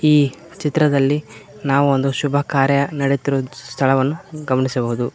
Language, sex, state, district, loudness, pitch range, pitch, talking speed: Kannada, male, Karnataka, Koppal, -18 LUFS, 135-145 Hz, 140 Hz, 95 wpm